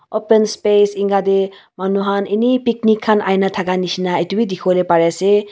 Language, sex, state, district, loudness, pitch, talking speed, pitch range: Nagamese, female, Nagaland, Kohima, -16 LUFS, 200 Hz, 195 wpm, 185-215 Hz